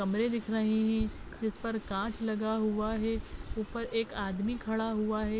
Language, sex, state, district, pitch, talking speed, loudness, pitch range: Hindi, female, Maharashtra, Nagpur, 220 Hz, 180 wpm, -33 LUFS, 215-225 Hz